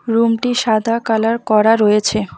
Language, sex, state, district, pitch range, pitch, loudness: Bengali, female, West Bengal, Alipurduar, 215-230 Hz, 225 Hz, -15 LUFS